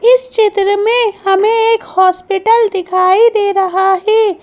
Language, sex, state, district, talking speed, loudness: Hindi, female, Madhya Pradesh, Bhopal, 135 wpm, -11 LUFS